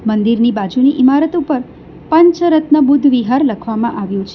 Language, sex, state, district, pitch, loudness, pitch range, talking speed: Gujarati, female, Gujarat, Valsad, 260 Hz, -13 LUFS, 225-295 Hz, 140 wpm